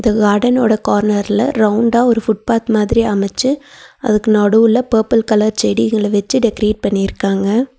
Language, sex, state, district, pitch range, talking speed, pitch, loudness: Tamil, female, Tamil Nadu, Nilgiris, 210-235 Hz, 130 wpm, 220 Hz, -14 LUFS